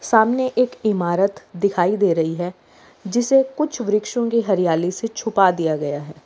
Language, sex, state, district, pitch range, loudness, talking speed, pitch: Hindi, female, Uttar Pradesh, Lalitpur, 175-230 Hz, -20 LUFS, 165 wpm, 200 Hz